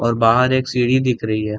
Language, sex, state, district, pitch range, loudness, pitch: Hindi, male, Bihar, Darbhanga, 110-125 Hz, -17 LUFS, 120 Hz